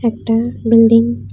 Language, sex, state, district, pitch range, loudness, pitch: Bengali, female, Tripura, West Tripura, 230-235 Hz, -13 LUFS, 230 Hz